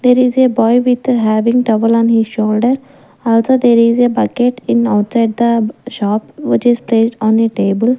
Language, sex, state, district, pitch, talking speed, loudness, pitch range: English, female, Maharashtra, Gondia, 235 Hz, 190 wpm, -13 LUFS, 225-245 Hz